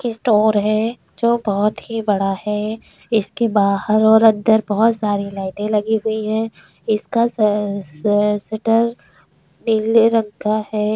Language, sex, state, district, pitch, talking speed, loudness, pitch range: Hindi, female, Uttar Pradesh, Deoria, 215 Hz, 125 wpm, -18 LUFS, 210-225 Hz